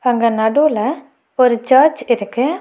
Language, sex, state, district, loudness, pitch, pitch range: Tamil, female, Tamil Nadu, Nilgiris, -15 LUFS, 250 Hz, 235-285 Hz